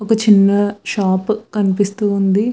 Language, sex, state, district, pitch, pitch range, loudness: Telugu, female, Andhra Pradesh, Visakhapatnam, 205 Hz, 195-215 Hz, -15 LUFS